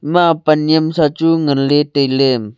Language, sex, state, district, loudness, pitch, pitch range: Wancho, male, Arunachal Pradesh, Longding, -14 LUFS, 150 Hz, 140-160 Hz